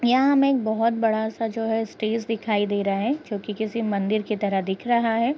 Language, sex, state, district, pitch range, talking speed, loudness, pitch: Hindi, female, Bihar, East Champaran, 210-230 Hz, 245 wpm, -24 LUFS, 225 Hz